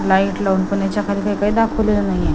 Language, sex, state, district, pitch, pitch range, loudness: Marathi, female, Maharashtra, Washim, 200 Hz, 195-210 Hz, -18 LUFS